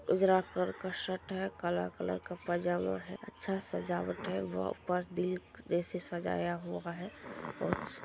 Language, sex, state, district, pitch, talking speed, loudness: Maithili, female, Bihar, Supaul, 175 Hz, 155 wpm, -36 LUFS